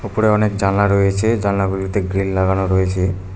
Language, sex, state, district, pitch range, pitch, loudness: Bengali, male, West Bengal, Cooch Behar, 95-100 Hz, 95 Hz, -17 LUFS